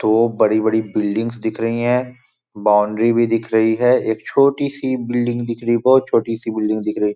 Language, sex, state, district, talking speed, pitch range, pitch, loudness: Hindi, male, Chhattisgarh, Balrampur, 220 wpm, 110-120 Hz, 115 Hz, -18 LUFS